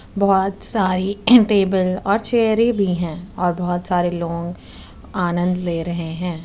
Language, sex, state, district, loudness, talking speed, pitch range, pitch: Hindi, female, Uttar Pradesh, Muzaffarnagar, -19 LUFS, 140 wpm, 175-200 Hz, 185 Hz